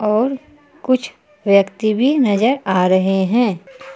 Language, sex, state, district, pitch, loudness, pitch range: Hindi, female, Jharkhand, Palamu, 215 Hz, -16 LUFS, 190-265 Hz